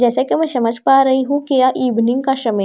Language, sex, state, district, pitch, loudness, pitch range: Hindi, female, Bihar, Katihar, 260 Hz, -15 LUFS, 240-270 Hz